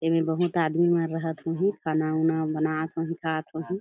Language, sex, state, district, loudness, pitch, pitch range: Chhattisgarhi, female, Chhattisgarh, Jashpur, -26 LUFS, 165 Hz, 160-170 Hz